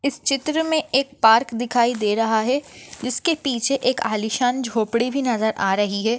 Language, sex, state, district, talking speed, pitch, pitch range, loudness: Hindi, female, Maharashtra, Nagpur, 185 wpm, 245 Hz, 225-275 Hz, -21 LUFS